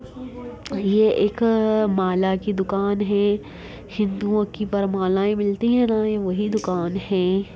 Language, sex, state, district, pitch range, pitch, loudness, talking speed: Hindi, female, Bihar, Lakhisarai, 195-215 Hz, 205 Hz, -21 LUFS, 145 wpm